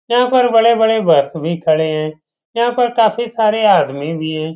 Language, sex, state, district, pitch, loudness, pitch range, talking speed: Hindi, male, Bihar, Saran, 200 Hz, -14 LUFS, 155-235 Hz, 185 wpm